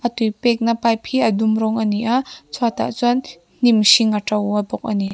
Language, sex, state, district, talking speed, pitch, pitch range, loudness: Mizo, female, Mizoram, Aizawl, 235 wpm, 225 Hz, 210-240 Hz, -18 LUFS